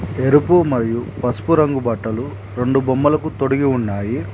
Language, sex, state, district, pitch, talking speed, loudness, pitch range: Telugu, male, Telangana, Mahabubabad, 125 Hz, 125 wpm, -18 LUFS, 110-140 Hz